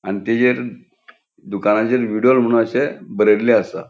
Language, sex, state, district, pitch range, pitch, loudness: Konkani, male, Goa, North and South Goa, 105-125 Hz, 115 Hz, -17 LUFS